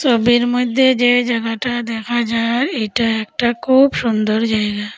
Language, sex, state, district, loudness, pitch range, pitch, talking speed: Bengali, female, Assam, Hailakandi, -16 LUFS, 225-245 Hz, 235 Hz, 130 wpm